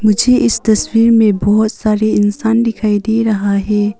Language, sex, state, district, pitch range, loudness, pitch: Hindi, female, Arunachal Pradesh, Papum Pare, 205-225 Hz, -13 LUFS, 215 Hz